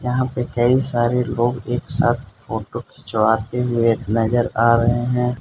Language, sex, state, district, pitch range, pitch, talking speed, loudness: Hindi, male, Arunachal Pradesh, Lower Dibang Valley, 115-125 Hz, 120 Hz, 155 wpm, -19 LUFS